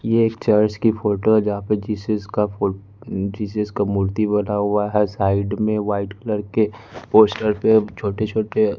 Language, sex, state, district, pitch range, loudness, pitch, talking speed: Hindi, male, Bihar, West Champaran, 100-110 Hz, -20 LUFS, 105 Hz, 175 wpm